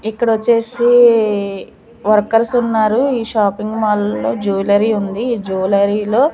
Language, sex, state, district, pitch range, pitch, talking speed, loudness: Telugu, female, Andhra Pradesh, Manyam, 205-235 Hz, 215 Hz, 115 wpm, -15 LUFS